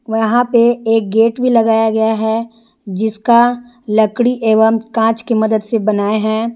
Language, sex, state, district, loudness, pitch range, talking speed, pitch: Hindi, female, Jharkhand, Garhwa, -14 LUFS, 220-235 Hz, 155 wpm, 225 Hz